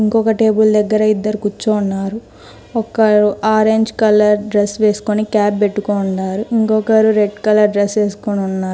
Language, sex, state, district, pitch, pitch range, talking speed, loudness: Telugu, female, Telangana, Hyderabad, 210 Hz, 205-215 Hz, 115 wpm, -15 LUFS